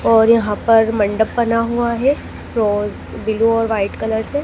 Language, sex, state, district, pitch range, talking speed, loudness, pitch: Hindi, female, Madhya Pradesh, Dhar, 220-230 Hz, 175 wpm, -17 LUFS, 225 Hz